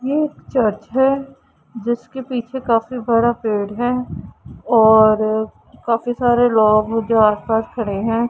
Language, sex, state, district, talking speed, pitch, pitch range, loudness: Hindi, female, Punjab, Pathankot, 145 wpm, 230 Hz, 220-245 Hz, -17 LUFS